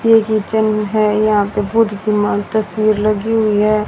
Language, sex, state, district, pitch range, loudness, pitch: Hindi, female, Haryana, Rohtak, 210-220 Hz, -15 LUFS, 215 Hz